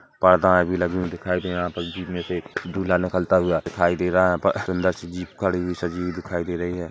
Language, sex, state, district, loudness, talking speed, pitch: Hindi, male, Chhattisgarh, Kabirdham, -23 LUFS, 285 wpm, 90 Hz